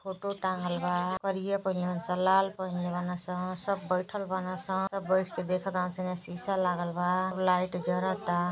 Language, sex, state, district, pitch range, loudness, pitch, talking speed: Hindi, female, Uttar Pradesh, Gorakhpur, 180-190 Hz, -31 LUFS, 185 Hz, 190 wpm